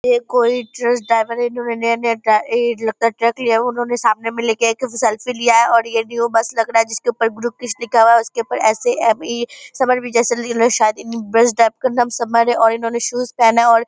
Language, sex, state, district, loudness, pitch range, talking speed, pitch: Hindi, female, Bihar, Purnia, -16 LUFS, 230-240 Hz, 230 wpm, 235 Hz